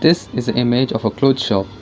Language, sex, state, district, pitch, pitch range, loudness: English, female, Karnataka, Bangalore, 120 Hz, 110-135 Hz, -17 LUFS